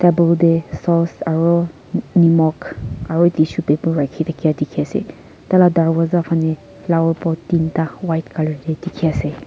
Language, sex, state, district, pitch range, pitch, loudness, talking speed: Nagamese, female, Nagaland, Kohima, 160-170 Hz, 165 Hz, -17 LUFS, 145 wpm